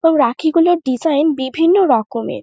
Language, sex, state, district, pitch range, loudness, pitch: Bengali, female, West Bengal, North 24 Parganas, 260-330 Hz, -15 LUFS, 315 Hz